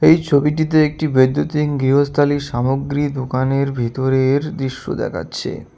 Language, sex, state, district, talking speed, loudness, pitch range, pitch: Bengali, male, West Bengal, Cooch Behar, 105 wpm, -18 LUFS, 130-150 Hz, 140 Hz